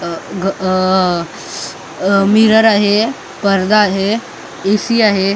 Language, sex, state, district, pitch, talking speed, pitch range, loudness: Marathi, male, Maharashtra, Mumbai Suburban, 200 Hz, 110 wpm, 190-215 Hz, -14 LUFS